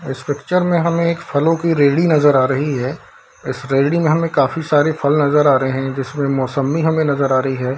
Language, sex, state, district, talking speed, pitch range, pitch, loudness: Hindi, male, Bihar, Darbhanga, 230 wpm, 135-160 Hz, 145 Hz, -16 LUFS